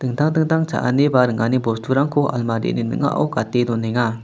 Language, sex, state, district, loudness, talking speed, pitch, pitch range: Garo, male, Meghalaya, West Garo Hills, -19 LUFS, 140 wpm, 125 Hz, 115-145 Hz